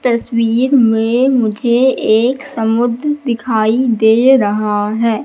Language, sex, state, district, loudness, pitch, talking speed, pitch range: Hindi, female, Madhya Pradesh, Katni, -13 LUFS, 235 Hz, 105 wpm, 220-255 Hz